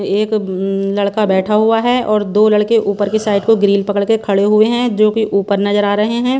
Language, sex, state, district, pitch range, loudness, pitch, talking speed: Hindi, female, Haryana, Charkhi Dadri, 200-220 Hz, -14 LUFS, 210 Hz, 235 wpm